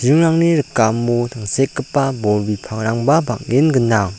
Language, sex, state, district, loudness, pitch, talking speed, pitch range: Garo, male, Meghalaya, South Garo Hills, -17 LUFS, 120 Hz, 100 wpm, 110-140 Hz